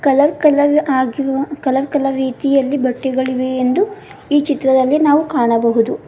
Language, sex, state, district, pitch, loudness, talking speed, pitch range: Kannada, female, Karnataka, Bidar, 275 Hz, -15 LUFS, 120 wpm, 260-290 Hz